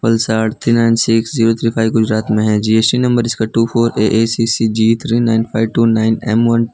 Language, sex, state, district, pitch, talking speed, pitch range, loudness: Hindi, male, Gujarat, Valsad, 115 Hz, 240 wpm, 110-115 Hz, -14 LUFS